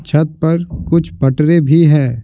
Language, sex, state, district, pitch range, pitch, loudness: Hindi, male, Bihar, Patna, 145-165 Hz, 155 Hz, -13 LUFS